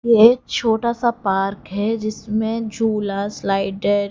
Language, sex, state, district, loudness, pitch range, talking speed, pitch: Hindi, female, Odisha, Khordha, -20 LUFS, 200-230 Hz, 130 wpm, 215 Hz